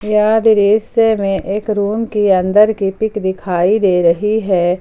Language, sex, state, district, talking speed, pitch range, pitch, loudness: Hindi, female, Jharkhand, Palamu, 160 wpm, 190-215 Hz, 210 Hz, -14 LUFS